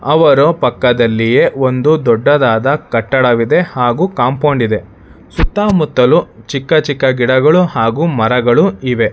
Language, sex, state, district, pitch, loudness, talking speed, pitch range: Kannada, male, Karnataka, Bangalore, 130 Hz, -12 LUFS, 100 wpm, 115-150 Hz